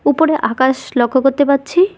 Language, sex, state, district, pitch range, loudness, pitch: Bengali, female, West Bengal, Cooch Behar, 260-315 Hz, -14 LUFS, 280 Hz